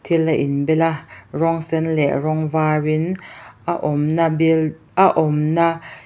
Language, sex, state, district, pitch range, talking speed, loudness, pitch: Mizo, female, Mizoram, Aizawl, 155-165 Hz, 160 wpm, -19 LUFS, 160 Hz